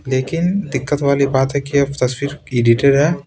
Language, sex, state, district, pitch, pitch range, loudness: Hindi, male, Bihar, Patna, 140 Hz, 135-145 Hz, -17 LUFS